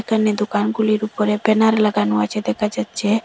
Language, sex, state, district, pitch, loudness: Bengali, female, Assam, Hailakandi, 210 Hz, -19 LUFS